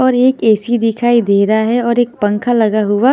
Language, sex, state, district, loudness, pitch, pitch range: Hindi, female, Punjab, Fazilka, -13 LUFS, 230 Hz, 215-240 Hz